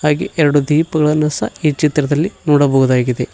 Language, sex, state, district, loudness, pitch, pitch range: Kannada, male, Karnataka, Koppal, -15 LUFS, 150 Hz, 140-155 Hz